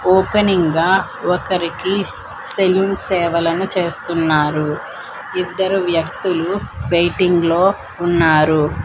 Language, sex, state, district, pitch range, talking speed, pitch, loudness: Telugu, female, Andhra Pradesh, Manyam, 165-190 Hz, 75 wpm, 175 Hz, -17 LUFS